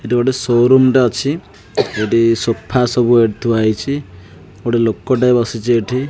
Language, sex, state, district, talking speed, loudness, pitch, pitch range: Odia, male, Odisha, Khordha, 140 wpm, -15 LUFS, 120 Hz, 115-130 Hz